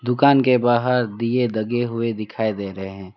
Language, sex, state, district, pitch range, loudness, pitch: Hindi, male, West Bengal, Alipurduar, 110-125 Hz, -20 LUFS, 115 Hz